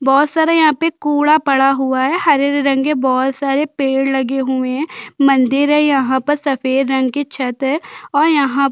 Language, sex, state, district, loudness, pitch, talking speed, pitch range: Hindi, female, Chhattisgarh, Jashpur, -15 LUFS, 275 Hz, 190 wpm, 265-295 Hz